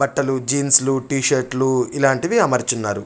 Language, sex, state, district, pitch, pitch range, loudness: Telugu, male, Andhra Pradesh, Chittoor, 135 Hz, 125-140 Hz, -18 LUFS